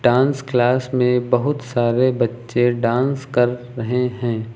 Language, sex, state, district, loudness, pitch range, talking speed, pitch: Hindi, male, Uttar Pradesh, Lucknow, -19 LUFS, 120-130 Hz, 130 wpm, 125 Hz